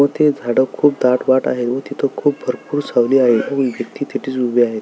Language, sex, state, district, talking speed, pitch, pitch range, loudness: Marathi, male, Maharashtra, Sindhudurg, 200 wpm, 130 Hz, 120-140 Hz, -17 LUFS